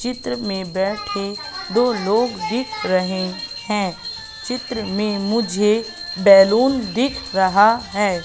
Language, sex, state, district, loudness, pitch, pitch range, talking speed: Hindi, female, Madhya Pradesh, Katni, -19 LUFS, 210 Hz, 195-240 Hz, 110 wpm